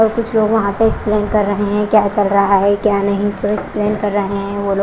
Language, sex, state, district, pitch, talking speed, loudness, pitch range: Hindi, female, Punjab, Kapurthala, 205 Hz, 275 wpm, -15 LUFS, 200-210 Hz